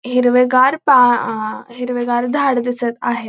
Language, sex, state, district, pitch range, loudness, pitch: Marathi, female, Maharashtra, Pune, 240-250 Hz, -15 LUFS, 245 Hz